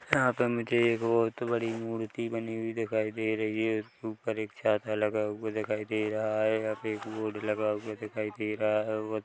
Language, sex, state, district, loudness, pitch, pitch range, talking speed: Hindi, male, Chhattisgarh, Rajnandgaon, -31 LUFS, 110 Hz, 110-115 Hz, 200 wpm